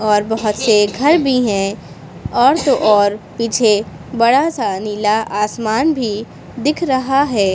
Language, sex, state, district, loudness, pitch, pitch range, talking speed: Hindi, female, Uttar Pradesh, Lucknow, -15 LUFS, 220 Hz, 205-260 Hz, 145 wpm